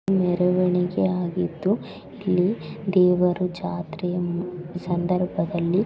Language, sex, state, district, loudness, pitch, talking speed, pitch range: Kannada, female, Karnataka, Raichur, -24 LUFS, 180 Hz, 70 wpm, 175-185 Hz